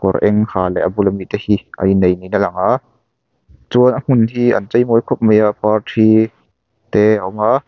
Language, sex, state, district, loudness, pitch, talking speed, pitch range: Mizo, male, Mizoram, Aizawl, -15 LUFS, 105 Hz, 260 wpm, 100-115 Hz